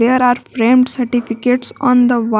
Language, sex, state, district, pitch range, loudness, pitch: English, female, Jharkhand, Garhwa, 240-250 Hz, -14 LUFS, 245 Hz